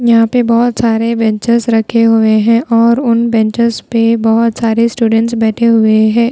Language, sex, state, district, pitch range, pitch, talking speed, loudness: Hindi, female, Bihar, Patna, 225-235 Hz, 230 Hz, 170 wpm, -11 LUFS